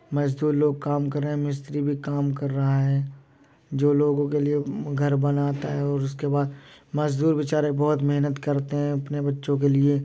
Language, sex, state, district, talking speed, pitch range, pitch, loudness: Hindi, male, Uttar Pradesh, Jyotiba Phule Nagar, 190 wpm, 140-145 Hz, 145 Hz, -24 LUFS